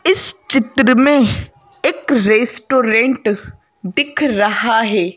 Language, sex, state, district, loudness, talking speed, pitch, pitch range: Hindi, female, Madhya Pradesh, Bhopal, -14 LUFS, 95 wpm, 255 Hz, 220-285 Hz